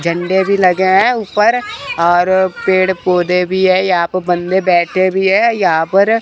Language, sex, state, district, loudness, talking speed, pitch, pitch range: Hindi, male, Chandigarh, Chandigarh, -13 LUFS, 175 wpm, 185 Hz, 175-190 Hz